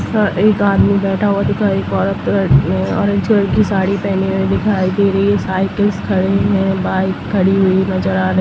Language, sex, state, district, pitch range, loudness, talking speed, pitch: Hindi, female, Bihar, East Champaran, 190-200 Hz, -15 LUFS, 200 wpm, 195 Hz